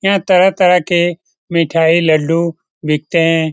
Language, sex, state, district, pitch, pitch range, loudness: Hindi, male, Bihar, Lakhisarai, 170 Hz, 160-180 Hz, -13 LUFS